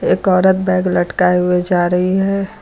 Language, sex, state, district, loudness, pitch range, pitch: Hindi, female, Uttar Pradesh, Lucknow, -15 LUFS, 180-190 Hz, 185 Hz